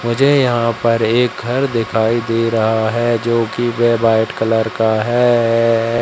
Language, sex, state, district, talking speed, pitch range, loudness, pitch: Hindi, male, Madhya Pradesh, Katni, 150 wpm, 115-120 Hz, -15 LUFS, 115 Hz